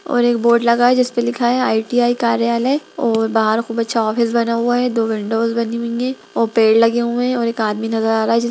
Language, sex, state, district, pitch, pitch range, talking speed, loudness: Hindi, female, Bihar, Gaya, 235 Hz, 225-240 Hz, 260 wpm, -17 LUFS